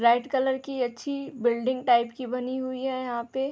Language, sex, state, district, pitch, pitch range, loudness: Hindi, female, Jharkhand, Sahebganj, 255 Hz, 240-265 Hz, -27 LUFS